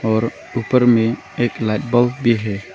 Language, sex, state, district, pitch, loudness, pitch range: Hindi, male, Arunachal Pradesh, Longding, 115 Hz, -18 LUFS, 110-120 Hz